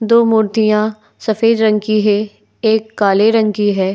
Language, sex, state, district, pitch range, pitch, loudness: Hindi, female, Uttar Pradesh, Etah, 210-220 Hz, 215 Hz, -14 LUFS